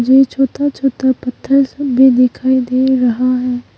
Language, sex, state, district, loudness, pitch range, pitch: Hindi, female, Arunachal Pradesh, Longding, -13 LUFS, 250-270 Hz, 260 Hz